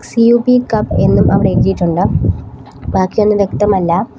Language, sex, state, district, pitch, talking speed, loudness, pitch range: Malayalam, female, Kerala, Kollam, 190 Hz, 100 wpm, -12 LUFS, 170-220 Hz